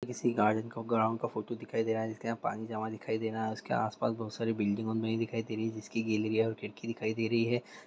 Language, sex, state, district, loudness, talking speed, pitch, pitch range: Hindi, male, Bihar, Muzaffarpur, -33 LUFS, 265 wpm, 110 Hz, 110-115 Hz